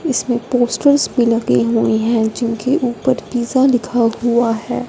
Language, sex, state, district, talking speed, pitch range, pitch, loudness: Hindi, female, Punjab, Fazilka, 145 wpm, 230-250 Hz, 240 Hz, -16 LUFS